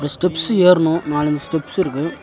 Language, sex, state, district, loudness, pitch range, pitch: Tamil, male, Tamil Nadu, Nilgiris, -17 LUFS, 150-180 Hz, 160 Hz